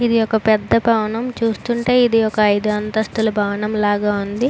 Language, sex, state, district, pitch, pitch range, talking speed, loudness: Telugu, female, Andhra Pradesh, Srikakulam, 220 Hz, 210-230 Hz, 160 wpm, -17 LUFS